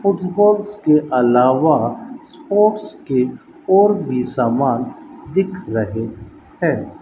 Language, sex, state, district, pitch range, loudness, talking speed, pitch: Hindi, male, Rajasthan, Bikaner, 125-205 Hz, -17 LUFS, 95 wpm, 170 Hz